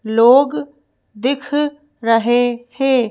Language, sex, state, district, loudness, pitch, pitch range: Hindi, female, Madhya Pradesh, Bhopal, -16 LUFS, 245 Hz, 230-275 Hz